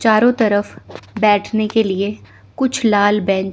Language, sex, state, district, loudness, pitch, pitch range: Hindi, female, Chandigarh, Chandigarh, -16 LUFS, 210 Hz, 200-220 Hz